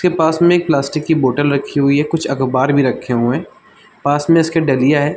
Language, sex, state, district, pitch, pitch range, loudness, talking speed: Hindi, male, Chhattisgarh, Balrampur, 145 Hz, 140-165 Hz, -15 LUFS, 245 wpm